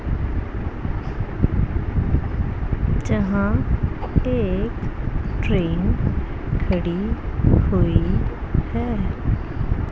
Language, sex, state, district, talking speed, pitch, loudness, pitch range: Hindi, female, Punjab, Pathankot, 35 wpm, 100 Hz, -23 LUFS, 85-105 Hz